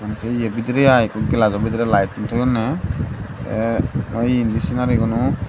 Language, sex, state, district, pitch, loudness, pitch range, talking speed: Chakma, male, Tripura, Dhalai, 115 Hz, -19 LUFS, 110-125 Hz, 175 wpm